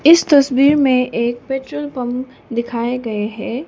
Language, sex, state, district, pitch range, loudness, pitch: Hindi, female, Sikkim, Gangtok, 235-280 Hz, -17 LUFS, 255 Hz